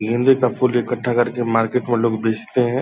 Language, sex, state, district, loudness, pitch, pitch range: Hindi, male, Bihar, Purnia, -19 LUFS, 120 Hz, 115-125 Hz